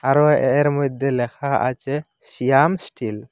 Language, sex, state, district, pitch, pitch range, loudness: Bengali, male, Assam, Hailakandi, 135 Hz, 125-145 Hz, -20 LUFS